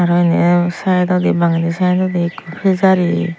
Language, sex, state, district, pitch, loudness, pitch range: Chakma, female, Tripura, Unakoti, 175 Hz, -15 LUFS, 170-180 Hz